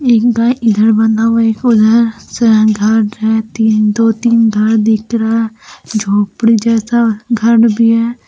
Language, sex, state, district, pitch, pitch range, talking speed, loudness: Hindi, female, Jharkhand, Deoghar, 225 Hz, 220-230 Hz, 130 wpm, -11 LUFS